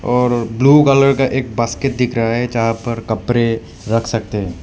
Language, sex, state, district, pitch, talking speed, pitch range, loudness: Hindi, male, Meghalaya, West Garo Hills, 115 Hz, 195 wpm, 115-125 Hz, -16 LUFS